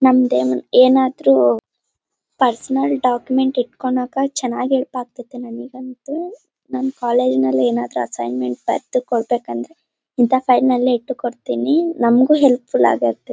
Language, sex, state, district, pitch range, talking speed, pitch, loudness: Kannada, female, Karnataka, Bellary, 235-265 Hz, 115 wpm, 250 Hz, -17 LUFS